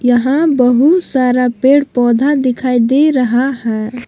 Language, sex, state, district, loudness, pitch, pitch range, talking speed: Hindi, female, Jharkhand, Palamu, -12 LUFS, 250 Hz, 245-275 Hz, 130 wpm